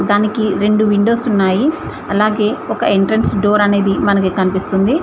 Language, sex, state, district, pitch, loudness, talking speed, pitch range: Telugu, female, Telangana, Mahabubabad, 205 Hz, -14 LUFS, 130 wpm, 195-215 Hz